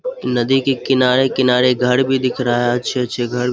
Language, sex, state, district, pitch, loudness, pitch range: Hindi, male, Bihar, Saharsa, 125 Hz, -16 LUFS, 125-130 Hz